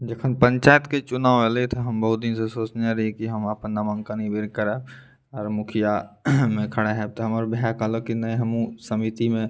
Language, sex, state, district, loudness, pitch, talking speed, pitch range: Maithili, male, Bihar, Madhepura, -23 LUFS, 115 Hz, 210 wpm, 110-120 Hz